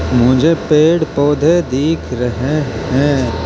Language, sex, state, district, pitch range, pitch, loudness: Hindi, male, Uttar Pradesh, Hamirpur, 125-155 Hz, 145 Hz, -14 LUFS